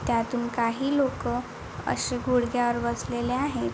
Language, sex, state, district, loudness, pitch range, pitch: Marathi, female, Maharashtra, Chandrapur, -27 LUFS, 235-250 Hz, 245 Hz